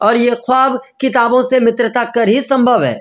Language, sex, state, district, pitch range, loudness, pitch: Hindi, male, Bihar, Jamui, 235-260 Hz, -13 LUFS, 245 Hz